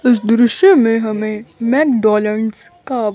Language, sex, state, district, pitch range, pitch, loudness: Hindi, female, Chandigarh, Chandigarh, 215-245 Hz, 225 Hz, -14 LUFS